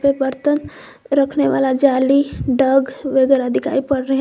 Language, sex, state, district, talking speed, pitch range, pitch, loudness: Hindi, female, Jharkhand, Garhwa, 140 wpm, 265-280 Hz, 275 Hz, -17 LUFS